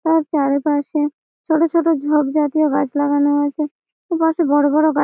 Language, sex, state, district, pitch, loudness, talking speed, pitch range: Bengali, female, West Bengal, Malda, 300 Hz, -18 LUFS, 165 wpm, 290-320 Hz